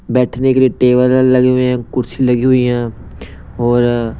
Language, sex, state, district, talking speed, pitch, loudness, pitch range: Hindi, male, Punjab, Pathankot, 170 wpm, 125 Hz, -13 LUFS, 120-125 Hz